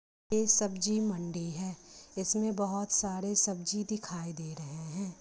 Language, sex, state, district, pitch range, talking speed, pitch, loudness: Hindi, male, Bihar, Samastipur, 175-210 Hz, 140 wpm, 195 Hz, -32 LUFS